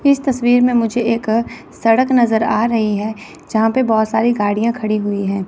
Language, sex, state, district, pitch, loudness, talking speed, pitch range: Hindi, female, Chandigarh, Chandigarh, 225 Hz, -16 LUFS, 195 wpm, 215-240 Hz